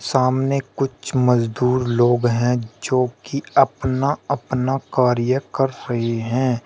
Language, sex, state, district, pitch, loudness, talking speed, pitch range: Hindi, male, Uttar Pradesh, Shamli, 125 Hz, -20 LUFS, 115 wpm, 120-135 Hz